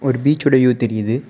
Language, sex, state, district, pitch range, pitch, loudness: Tamil, male, Tamil Nadu, Kanyakumari, 120-140 Hz, 130 Hz, -16 LUFS